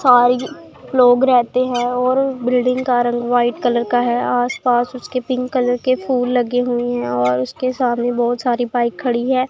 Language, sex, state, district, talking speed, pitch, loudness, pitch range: Hindi, female, Punjab, Pathankot, 185 wpm, 245 Hz, -17 LUFS, 240-255 Hz